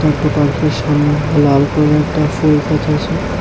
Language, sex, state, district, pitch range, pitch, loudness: Bengali, male, Tripura, West Tripura, 145-150 Hz, 150 Hz, -14 LUFS